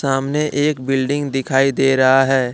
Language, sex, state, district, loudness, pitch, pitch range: Hindi, male, Jharkhand, Deoghar, -17 LUFS, 135 Hz, 135-140 Hz